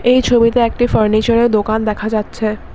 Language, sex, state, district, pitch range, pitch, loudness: Bengali, female, Assam, Kamrup Metropolitan, 215-235 Hz, 225 Hz, -14 LUFS